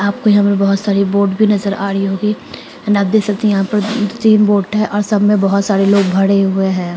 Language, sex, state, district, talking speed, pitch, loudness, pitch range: Hindi, female, Bihar, Madhepura, 240 wpm, 200 Hz, -14 LUFS, 195-210 Hz